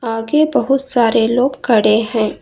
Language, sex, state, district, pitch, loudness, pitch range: Hindi, female, Karnataka, Bangalore, 235 Hz, -14 LUFS, 225-265 Hz